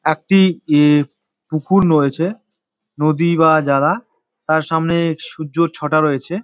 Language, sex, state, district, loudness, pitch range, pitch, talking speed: Bengali, male, West Bengal, Dakshin Dinajpur, -16 LUFS, 150-170 Hz, 155 Hz, 120 wpm